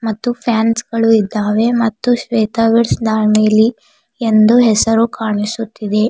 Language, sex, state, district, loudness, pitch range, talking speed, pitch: Kannada, female, Karnataka, Bidar, -14 LUFS, 215-235 Hz, 100 wpm, 225 Hz